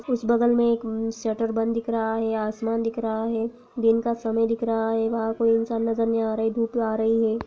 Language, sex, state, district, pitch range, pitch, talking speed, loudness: Hindi, female, Bihar, Gaya, 225-230 Hz, 225 Hz, 255 wpm, -24 LUFS